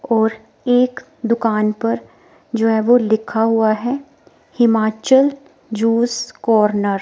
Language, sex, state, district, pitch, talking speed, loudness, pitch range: Hindi, female, Himachal Pradesh, Shimla, 230 Hz, 120 wpm, -17 LUFS, 220-250 Hz